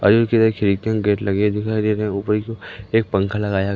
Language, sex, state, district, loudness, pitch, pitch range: Hindi, male, Madhya Pradesh, Umaria, -19 LUFS, 105 Hz, 100-110 Hz